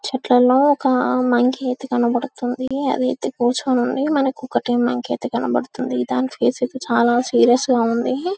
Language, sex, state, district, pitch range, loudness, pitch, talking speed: Telugu, male, Telangana, Karimnagar, 240-265 Hz, -19 LUFS, 250 Hz, 150 wpm